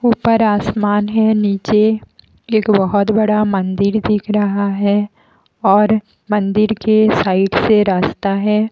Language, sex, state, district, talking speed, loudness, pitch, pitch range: Hindi, female, Haryana, Jhajjar, 125 wpm, -15 LUFS, 210 Hz, 200-215 Hz